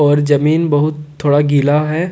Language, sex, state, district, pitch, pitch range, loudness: Hindi, male, Jharkhand, Deoghar, 150 Hz, 145-155 Hz, -14 LUFS